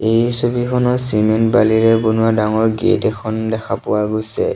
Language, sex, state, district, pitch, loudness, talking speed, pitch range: Assamese, male, Assam, Sonitpur, 110 Hz, -15 LUFS, 145 wpm, 110-120 Hz